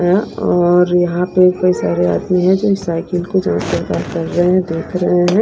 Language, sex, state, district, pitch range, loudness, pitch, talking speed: Hindi, female, Punjab, Kapurthala, 175-185 Hz, -15 LUFS, 180 Hz, 190 wpm